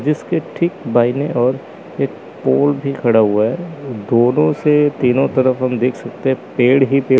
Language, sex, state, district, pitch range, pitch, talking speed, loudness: Hindi, male, Chandigarh, Chandigarh, 125-145 Hz, 130 Hz, 175 wpm, -16 LUFS